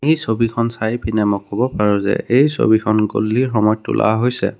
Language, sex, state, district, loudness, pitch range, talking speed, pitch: Assamese, male, Assam, Kamrup Metropolitan, -17 LUFS, 105-120 Hz, 180 wpm, 110 Hz